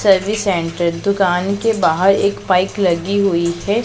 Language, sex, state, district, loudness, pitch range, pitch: Hindi, female, Punjab, Pathankot, -16 LUFS, 175-200 Hz, 195 Hz